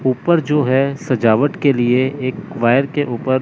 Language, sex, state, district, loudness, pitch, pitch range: Hindi, male, Chandigarh, Chandigarh, -16 LUFS, 135 Hz, 130-145 Hz